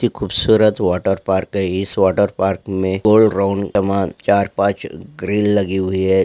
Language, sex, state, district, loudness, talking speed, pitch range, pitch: Hindi, male, Maharashtra, Pune, -17 LUFS, 155 wpm, 95-100 Hz, 100 Hz